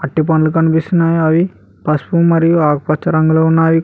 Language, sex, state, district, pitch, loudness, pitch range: Telugu, male, Telangana, Hyderabad, 160 Hz, -13 LUFS, 155-165 Hz